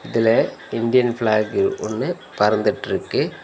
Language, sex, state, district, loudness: Tamil, male, Tamil Nadu, Nilgiris, -20 LUFS